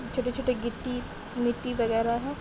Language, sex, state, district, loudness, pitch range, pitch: Hindi, female, Bihar, Darbhanga, -30 LUFS, 235-250 Hz, 240 Hz